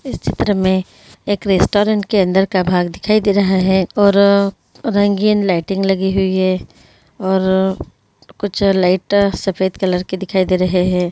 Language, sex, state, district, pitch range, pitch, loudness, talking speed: Hindi, female, Bihar, Begusarai, 185-200 Hz, 190 Hz, -15 LUFS, 160 wpm